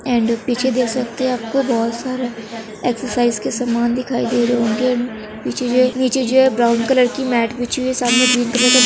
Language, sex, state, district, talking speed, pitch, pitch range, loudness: Hindi, female, Bihar, Darbhanga, 225 wpm, 245 Hz, 235-255 Hz, -17 LUFS